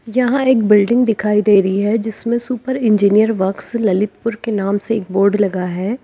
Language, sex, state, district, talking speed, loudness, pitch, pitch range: Hindi, female, Uttar Pradesh, Lalitpur, 190 wpm, -16 LUFS, 215 Hz, 200-235 Hz